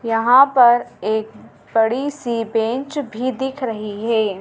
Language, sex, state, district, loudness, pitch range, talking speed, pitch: Hindi, female, Madhya Pradesh, Dhar, -18 LUFS, 225-255 Hz, 135 wpm, 235 Hz